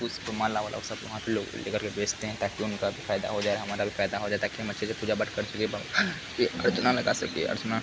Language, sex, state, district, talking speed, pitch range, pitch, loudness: Hindi, male, Bihar, Kishanganj, 290 wpm, 105-110 Hz, 105 Hz, -30 LUFS